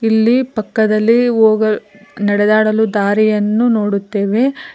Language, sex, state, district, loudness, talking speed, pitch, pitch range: Kannada, female, Karnataka, Koppal, -14 LUFS, 75 wpm, 215 Hz, 205-225 Hz